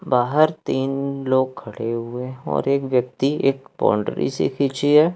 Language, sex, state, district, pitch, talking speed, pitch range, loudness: Hindi, male, Madhya Pradesh, Katni, 135 Hz, 165 wpm, 125-140 Hz, -21 LUFS